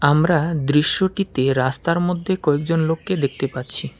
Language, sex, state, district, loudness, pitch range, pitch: Bengali, male, West Bengal, Alipurduar, -20 LUFS, 140-175 Hz, 160 Hz